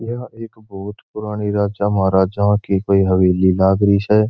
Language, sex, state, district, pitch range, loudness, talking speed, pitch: Marwari, male, Rajasthan, Churu, 95-105 Hz, -16 LUFS, 155 wpm, 100 Hz